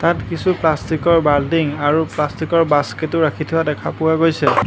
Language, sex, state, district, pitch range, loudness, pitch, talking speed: Assamese, male, Assam, Hailakandi, 150-165 Hz, -17 LUFS, 160 Hz, 155 wpm